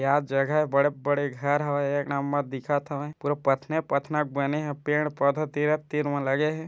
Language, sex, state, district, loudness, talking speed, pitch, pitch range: Chhattisgarhi, male, Chhattisgarh, Bilaspur, -26 LUFS, 180 wpm, 145 Hz, 140-150 Hz